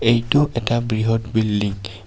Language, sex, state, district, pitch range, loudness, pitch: Assamese, male, Assam, Kamrup Metropolitan, 105-120 Hz, -20 LUFS, 115 Hz